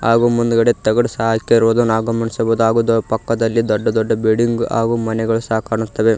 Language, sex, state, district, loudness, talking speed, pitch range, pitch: Kannada, male, Karnataka, Koppal, -16 LUFS, 125 wpm, 110-115 Hz, 115 Hz